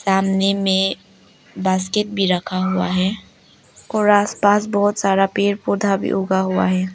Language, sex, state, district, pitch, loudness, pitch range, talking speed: Hindi, female, Arunachal Pradesh, Lower Dibang Valley, 195 Hz, -18 LUFS, 190-205 Hz, 155 wpm